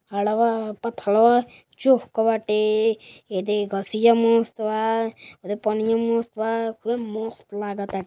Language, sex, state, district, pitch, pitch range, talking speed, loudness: Hindi, female, Uttar Pradesh, Gorakhpur, 220 Hz, 210-230 Hz, 120 wpm, -22 LUFS